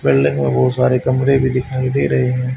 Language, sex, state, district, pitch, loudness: Hindi, male, Haryana, Jhajjar, 125 Hz, -16 LUFS